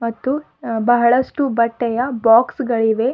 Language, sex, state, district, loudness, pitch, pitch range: Kannada, female, Karnataka, Bidar, -17 LUFS, 240 Hz, 230-260 Hz